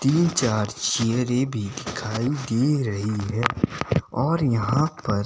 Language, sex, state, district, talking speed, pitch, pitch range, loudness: Hindi, male, Himachal Pradesh, Shimla, 125 wpm, 120 Hz, 110-135 Hz, -24 LUFS